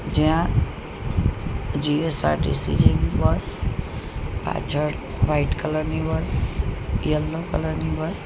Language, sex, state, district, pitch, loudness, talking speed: Gujarati, female, Gujarat, Gandhinagar, 145 Hz, -24 LUFS, 100 wpm